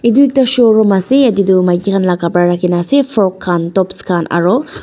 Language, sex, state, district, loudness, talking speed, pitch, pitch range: Nagamese, female, Nagaland, Dimapur, -12 LUFS, 235 wpm, 190 Hz, 175-235 Hz